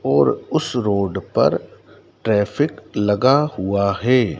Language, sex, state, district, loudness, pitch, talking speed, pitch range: Hindi, male, Madhya Pradesh, Dhar, -19 LUFS, 110 Hz, 110 wpm, 100-130 Hz